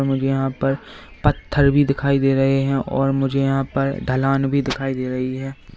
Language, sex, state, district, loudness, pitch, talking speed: Hindi, male, Uttar Pradesh, Lalitpur, -20 LUFS, 135 Hz, 200 wpm